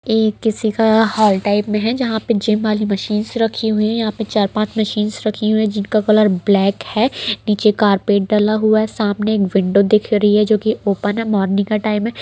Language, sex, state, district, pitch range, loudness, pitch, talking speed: Hindi, female, Bihar, East Champaran, 205-220 Hz, -16 LUFS, 215 Hz, 225 wpm